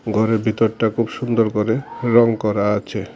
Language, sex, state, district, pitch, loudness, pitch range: Bengali, male, Tripura, Dhalai, 110 Hz, -19 LUFS, 105-115 Hz